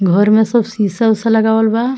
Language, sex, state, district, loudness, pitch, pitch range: Bhojpuri, female, Bihar, Muzaffarpur, -13 LUFS, 220 Hz, 210-225 Hz